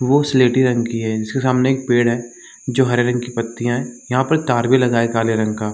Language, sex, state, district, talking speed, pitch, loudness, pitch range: Hindi, male, Jharkhand, Sahebganj, 260 wpm, 120 Hz, -17 LUFS, 115-130 Hz